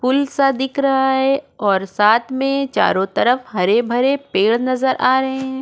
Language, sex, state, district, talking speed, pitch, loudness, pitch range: Hindi, female, Goa, North and South Goa, 180 wpm, 265 Hz, -17 LUFS, 230-270 Hz